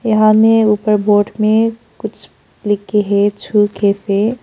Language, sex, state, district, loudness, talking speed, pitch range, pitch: Hindi, female, Arunachal Pradesh, Papum Pare, -14 LUFS, 150 wpm, 205-220 Hz, 210 Hz